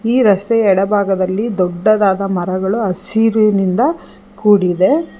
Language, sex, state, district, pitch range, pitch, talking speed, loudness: Kannada, female, Karnataka, Bangalore, 190-220 Hz, 200 Hz, 80 wpm, -14 LUFS